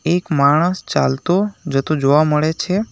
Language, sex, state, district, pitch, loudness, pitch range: Gujarati, male, Gujarat, Navsari, 155 Hz, -17 LUFS, 145-180 Hz